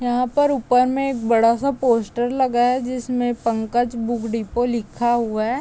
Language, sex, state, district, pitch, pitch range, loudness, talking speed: Hindi, female, Uttar Pradesh, Deoria, 240 Hz, 230-250 Hz, -20 LUFS, 180 wpm